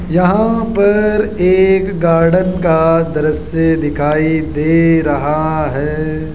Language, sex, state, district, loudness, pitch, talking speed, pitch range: Hindi, male, Rajasthan, Jaipur, -13 LUFS, 165 Hz, 95 wpm, 155-185 Hz